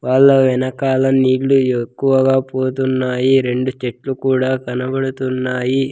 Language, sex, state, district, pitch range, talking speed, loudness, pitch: Telugu, male, Andhra Pradesh, Sri Satya Sai, 130-135 Hz, 90 wpm, -16 LUFS, 130 Hz